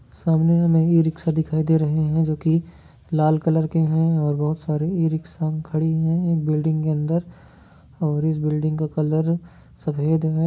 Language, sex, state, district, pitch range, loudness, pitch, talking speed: Hindi, male, Jharkhand, Jamtara, 155-165 Hz, -21 LUFS, 160 Hz, 180 wpm